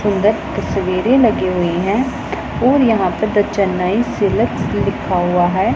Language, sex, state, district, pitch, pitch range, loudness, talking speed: Hindi, female, Punjab, Pathankot, 200 Hz, 185-225 Hz, -16 LUFS, 145 wpm